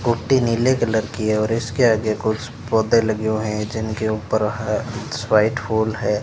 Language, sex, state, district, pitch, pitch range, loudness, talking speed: Hindi, male, Rajasthan, Bikaner, 110 Hz, 110-115 Hz, -20 LUFS, 185 wpm